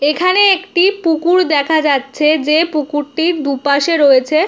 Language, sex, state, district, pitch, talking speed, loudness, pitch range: Bengali, female, West Bengal, Jhargram, 310 Hz, 135 wpm, -13 LUFS, 290-345 Hz